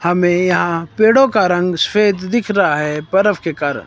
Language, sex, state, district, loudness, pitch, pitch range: Hindi, male, Himachal Pradesh, Shimla, -15 LUFS, 180 Hz, 165-205 Hz